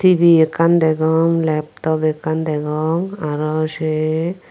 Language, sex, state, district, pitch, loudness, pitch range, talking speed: Chakma, female, Tripura, Unakoti, 160 Hz, -17 LUFS, 155-165 Hz, 105 wpm